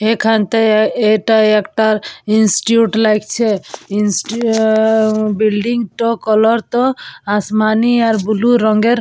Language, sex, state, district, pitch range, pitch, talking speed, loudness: Bengali, female, West Bengal, Purulia, 215-230 Hz, 220 Hz, 100 wpm, -14 LUFS